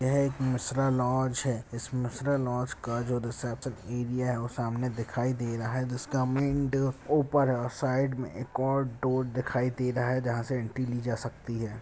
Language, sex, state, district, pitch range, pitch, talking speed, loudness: Hindi, male, West Bengal, Purulia, 120-130 Hz, 125 Hz, 200 wpm, -30 LUFS